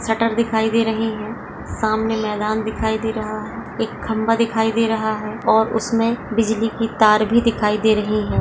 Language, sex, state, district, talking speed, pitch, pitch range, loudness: Hindi, female, Maharashtra, Sindhudurg, 195 wpm, 220 Hz, 215-225 Hz, -19 LUFS